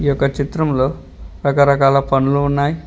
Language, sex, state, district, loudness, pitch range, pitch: Telugu, male, Telangana, Mahabubabad, -16 LUFS, 135-140 Hz, 140 Hz